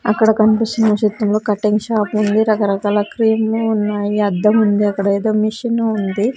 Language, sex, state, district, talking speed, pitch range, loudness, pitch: Telugu, female, Andhra Pradesh, Sri Satya Sai, 140 wpm, 205-220 Hz, -16 LUFS, 215 Hz